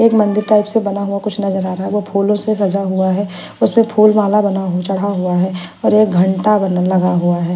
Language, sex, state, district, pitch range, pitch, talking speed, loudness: Hindi, female, Chandigarh, Chandigarh, 185-210 Hz, 200 Hz, 255 wpm, -15 LUFS